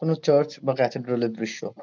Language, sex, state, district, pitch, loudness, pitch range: Bengali, male, West Bengal, Kolkata, 135 Hz, -24 LUFS, 120-150 Hz